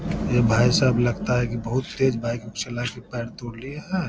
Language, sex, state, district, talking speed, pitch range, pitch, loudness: Hindi, male, Bihar, Lakhisarai, 190 wpm, 120-130 Hz, 120 Hz, -23 LUFS